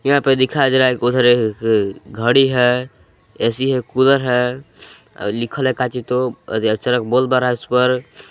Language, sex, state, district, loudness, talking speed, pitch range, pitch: Hindi, male, Jharkhand, Palamu, -17 LUFS, 180 wpm, 115-130 Hz, 125 Hz